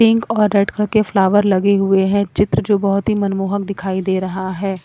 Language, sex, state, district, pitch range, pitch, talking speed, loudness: Hindi, female, Punjab, Kapurthala, 195-205 Hz, 200 Hz, 220 wpm, -16 LUFS